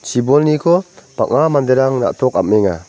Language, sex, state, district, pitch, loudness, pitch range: Garo, male, Meghalaya, North Garo Hills, 135 Hz, -14 LUFS, 120-155 Hz